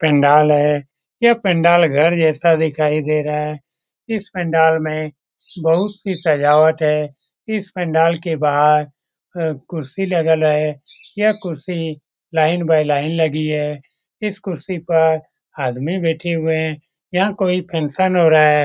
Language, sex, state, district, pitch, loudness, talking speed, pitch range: Hindi, male, Bihar, Lakhisarai, 160 Hz, -17 LUFS, 145 wpm, 150-175 Hz